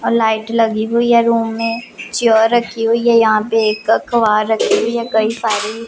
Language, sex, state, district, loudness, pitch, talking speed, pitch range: Hindi, female, Punjab, Pathankot, -15 LUFS, 225 Hz, 205 wpm, 220-230 Hz